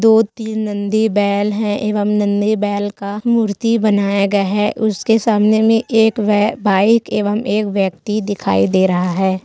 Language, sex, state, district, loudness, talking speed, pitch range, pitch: Hindi, female, Chhattisgarh, Kabirdham, -16 LUFS, 160 wpm, 200-220 Hz, 210 Hz